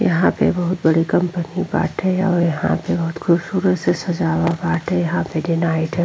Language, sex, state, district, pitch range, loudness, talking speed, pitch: Bhojpuri, female, Uttar Pradesh, Ghazipur, 165-180 Hz, -19 LUFS, 190 wpm, 175 Hz